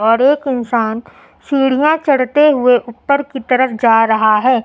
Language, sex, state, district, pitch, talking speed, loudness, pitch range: Hindi, female, Uttar Pradesh, Lucknow, 255 Hz, 155 wpm, -13 LUFS, 230-280 Hz